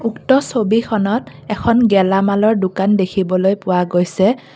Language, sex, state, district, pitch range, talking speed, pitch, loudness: Assamese, female, Assam, Kamrup Metropolitan, 190-225 Hz, 105 wpm, 200 Hz, -16 LUFS